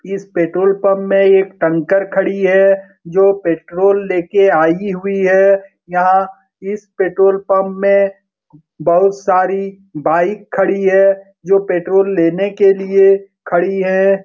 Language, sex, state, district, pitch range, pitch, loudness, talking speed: Hindi, male, Bihar, Lakhisarai, 185-195 Hz, 195 Hz, -14 LUFS, 140 wpm